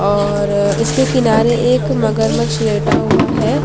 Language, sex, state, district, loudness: Hindi, female, Maharashtra, Mumbai Suburban, -14 LUFS